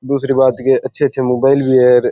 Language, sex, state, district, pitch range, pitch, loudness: Rajasthani, male, Rajasthan, Churu, 125-135 Hz, 130 Hz, -13 LUFS